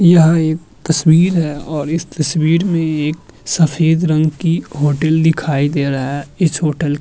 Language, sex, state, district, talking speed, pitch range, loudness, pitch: Hindi, male, Uttar Pradesh, Muzaffarnagar, 170 wpm, 150-165 Hz, -15 LUFS, 160 Hz